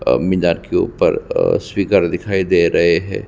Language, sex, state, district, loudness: Hindi, male, Chhattisgarh, Sukma, -16 LUFS